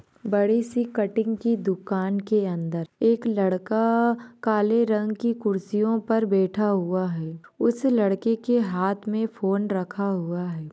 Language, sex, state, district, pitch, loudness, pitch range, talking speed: Hindi, female, Maharashtra, Nagpur, 210 Hz, -24 LUFS, 190-225 Hz, 145 wpm